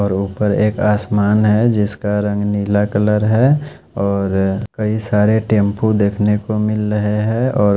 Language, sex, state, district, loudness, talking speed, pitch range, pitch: Hindi, male, Odisha, Khordha, -16 LUFS, 155 wpm, 100-110 Hz, 105 Hz